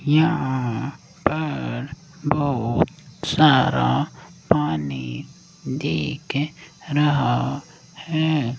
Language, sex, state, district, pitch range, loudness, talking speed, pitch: Hindi, male, Rajasthan, Jaipur, 125-155 Hz, -22 LUFS, 55 wpm, 145 Hz